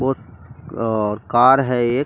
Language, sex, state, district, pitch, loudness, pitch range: Hindi, male, Delhi, New Delhi, 120 Hz, -17 LUFS, 110-130 Hz